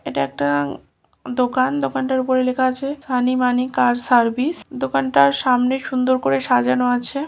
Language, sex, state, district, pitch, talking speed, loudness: Bengali, female, West Bengal, Kolkata, 250 Hz, 150 wpm, -19 LUFS